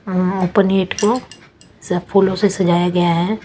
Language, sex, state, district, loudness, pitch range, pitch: Hindi, female, Chhattisgarh, Raipur, -17 LUFS, 180-200 Hz, 190 Hz